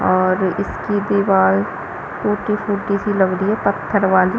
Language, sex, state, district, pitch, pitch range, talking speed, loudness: Hindi, female, Chhattisgarh, Balrampur, 200 Hz, 185-205 Hz, 150 wpm, -18 LUFS